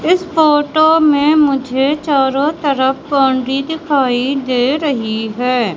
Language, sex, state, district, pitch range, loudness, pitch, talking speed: Hindi, male, Madhya Pradesh, Katni, 260-305 Hz, -14 LUFS, 275 Hz, 115 wpm